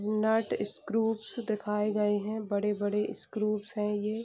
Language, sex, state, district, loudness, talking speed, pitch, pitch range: Hindi, female, Bihar, Gopalganj, -31 LUFS, 125 wpm, 210 Hz, 210-220 Hz